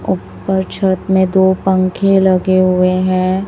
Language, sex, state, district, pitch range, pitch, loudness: Hindi, female, Chhattisgarh, Raipur, 185-190 Hz, 190 Hz, -14 LUFS